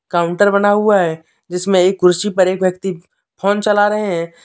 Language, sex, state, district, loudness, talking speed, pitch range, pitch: Hindi, male, Jharkhand, Deoghar, -15 LUFS, 190 wpm, 180-205 Hz, 190 Hz